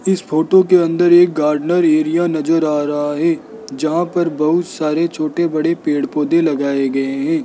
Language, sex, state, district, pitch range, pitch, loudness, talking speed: Hindi, male, Rajasthan, Jaipur, 150-175 Hz, 165 Hz, -16 LUFS, 175 wpm